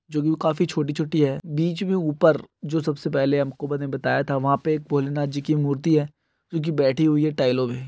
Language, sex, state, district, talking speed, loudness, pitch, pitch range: Hindi, male, Andhra Pradesh, Guntur, 215 wpm, -23 LUFS, 150 Hz, 140-160 Hz